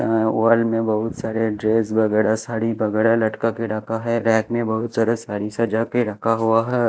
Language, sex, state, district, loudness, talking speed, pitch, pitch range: Hindi, male, Chhattisgarh, Raipur, -20 LUFS, 200 wpm, 115 Hz, 110-115 Hz